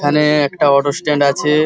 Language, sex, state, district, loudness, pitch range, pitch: Bengali, male, West Bengal, Paschim Medinipur, -14 LUFS, 140-150 Hz, 145 Hz